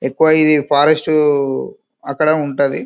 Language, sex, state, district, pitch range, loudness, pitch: Telugu, male, Telangana, Karimnagar, 140-155 Hz, -14 LUFS, 150 Hz